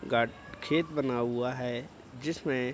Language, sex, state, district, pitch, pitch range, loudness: Hindi, male, Bihar, Araria, 125 Hz, 120-150 Hz, -32 LUFS